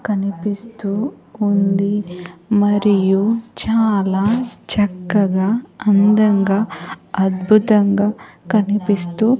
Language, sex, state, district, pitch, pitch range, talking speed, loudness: Telugu, female, Andhra Pradesh, Sri Satya Sai, 205 Hz, 195-215 Hz, 50 wpm, -17 LUFS